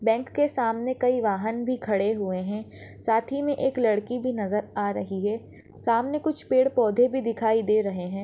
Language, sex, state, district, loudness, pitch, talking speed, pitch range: Hindi, female, Maharashtra, Pune, -25 LUFS, 230 Hz, 195 wpm, 210-255 Hz